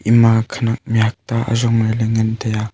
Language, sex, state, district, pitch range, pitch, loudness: Wancho, male, Arunachal Pradesh, Longding, 110-115 Hz, 115 Hz, -17 LUFS